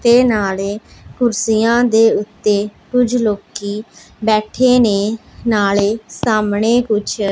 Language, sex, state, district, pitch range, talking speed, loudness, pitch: Punjabi, female, Punjab, Pathankot, 205-235 Hz, 105 wpm, -16 LUFS, 215 Hz